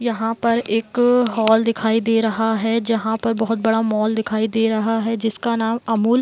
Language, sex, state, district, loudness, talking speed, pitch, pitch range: Hindi, female, Bihar, Gopalganj, -19 LUFS, 210 wpm, 225 Hz, 220-230 Hz